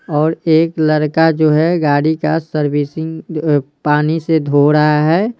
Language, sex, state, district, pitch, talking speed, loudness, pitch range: Hindi, male, Bihar, Patna, 155 Hz, 135 wpm, -14 LUFS, 150-160 Hz